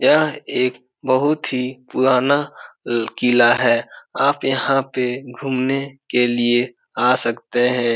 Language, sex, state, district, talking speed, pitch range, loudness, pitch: Hindi, male, Bihar, Supaul, 145 wpm, 120-135 Hz, -19 LUFS, 125 Hz